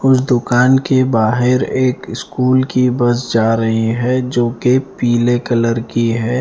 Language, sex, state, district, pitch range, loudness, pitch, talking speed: Hindi, male, Punjab, Fazilka, 115-130 Hz, -15 LUFS, 125 Hz, 160 wpm